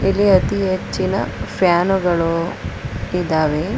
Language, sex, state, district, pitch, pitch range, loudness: Kannada, female, Karnataka, Bangalore, 175 Hz, 155-185 Hz, -18 LUFS